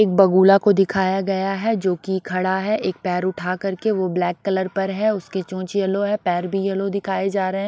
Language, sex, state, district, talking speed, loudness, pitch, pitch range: Hindi, female, Odisha, Sambalpur, 220 wpm, -20 LUFS, 195 Hz, 185-195 Hz